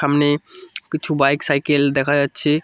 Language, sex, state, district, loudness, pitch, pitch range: Bengali, male, West Bengal, Cooch Behar, -18 LUFS, 145 Hz, 140-155 Hz